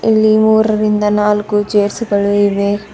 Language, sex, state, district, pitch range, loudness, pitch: Kannada, female, Karnataka, Bidar, 205-215 Hz, -13 LUFS, 210 Hz